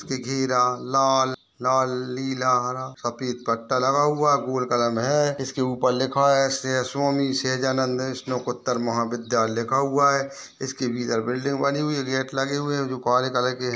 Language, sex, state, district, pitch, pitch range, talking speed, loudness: Hindi, male, Uttar Pradesh, Ghazipur, 130 Hz, 125-135 Hz, 160 wpm, -23 LUFS